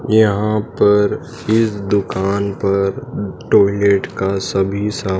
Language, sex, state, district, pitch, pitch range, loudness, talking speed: Hindi, male, Madhya Pradesh, Dhar, 100 Hz, 100-105 Hz, -17 LUFS, 105 wpm